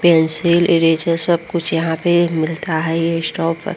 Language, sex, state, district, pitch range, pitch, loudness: Hindi, female, Bihar, Vaishali, 165-170 Hz, 165 Hz, -16 LUFS